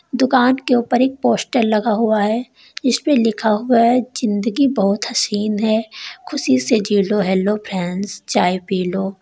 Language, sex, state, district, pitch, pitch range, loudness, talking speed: Hindi, female, Uttar Pradesh, Lalitpur, 225 Hz, 205-250 Hz, -17 LUFS, 155 wpm